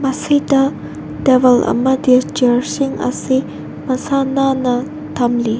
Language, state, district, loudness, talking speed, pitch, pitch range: Manipuri, Manipur, Imphal West, -15 LUFS, 95 wpm, 265 Hz, 250-275 Hz